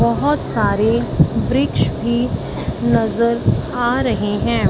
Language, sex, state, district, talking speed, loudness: Hindi, female, Punjab, Fazilka, 100 wpm, -18 LUFS